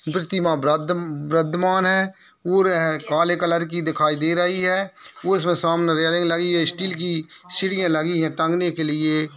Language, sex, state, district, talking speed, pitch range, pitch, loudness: Hindi, male, Uttar Pradesh, Etah, 175 wpm, 160-180 Hz, 170 Hz, -20 LUFS